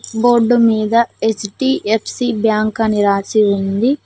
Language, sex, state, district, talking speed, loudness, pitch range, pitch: Telugu, female, Telangana, Mahabubabad, 105 wpm, -15 LUFS, 210-235 Hz, 220 Hz